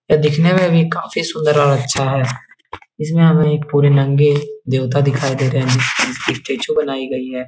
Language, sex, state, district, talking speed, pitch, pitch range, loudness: Hindi, male, Uttar Pradesh, Etah, 175 wpm, 145 Hz, 135-155 Hz, -15 LUFS